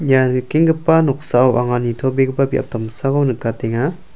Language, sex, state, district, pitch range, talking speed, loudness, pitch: Garo, male, Meghalaya, South Garo Hills, 125-145 Hz, 115 wpm, -17 LUFS, 130 Hz